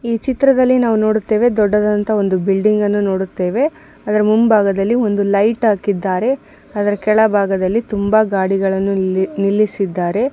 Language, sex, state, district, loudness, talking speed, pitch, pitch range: Kannada, female, Karnataka, Mysore, -15 LUFS, 115 wpm, 210 Hz, 195-220 Hz